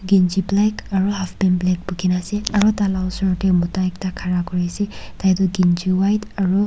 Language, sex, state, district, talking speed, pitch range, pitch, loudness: Nagamese, female, Nagaland, Kohima, 190 wpm, 180-200 Hz, 190 Hz, -20 LUFS